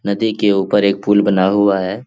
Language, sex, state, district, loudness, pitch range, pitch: Hindi, male, Bihar, Lakhisarai, -15 LUFS, 95-105 Hz, 100 Hz